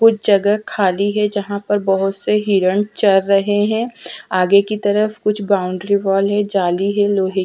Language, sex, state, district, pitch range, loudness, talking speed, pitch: Hindi, female, Punjab, Fazilka, 195-210 Hz, -16 LUFS, 195 wpm, 200 Hz